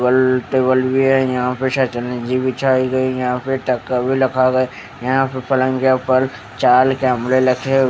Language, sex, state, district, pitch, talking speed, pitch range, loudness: Hindi, male, Haryana, Charkhi Dadri, 130 Hz, 180 wpm, 125-130 Hz, -17 LUFS